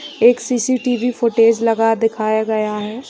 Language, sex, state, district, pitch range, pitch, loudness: Hindi, female, Bihar, Kishanganj, 220-245 Hz, 230 Hz, -16 LUFS